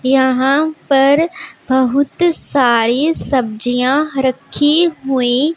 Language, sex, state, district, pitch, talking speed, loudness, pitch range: Hindi, female, Punjab, Pathankot, 270 Hz, 75 wpm, -14 LUFS, 255-305 Hz